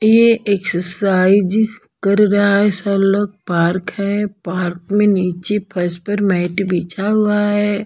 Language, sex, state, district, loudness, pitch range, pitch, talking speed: Hindi, female, Bihar, Patna, -16 LUFS, 185-205 Hz, 200 Hz, 130 wpm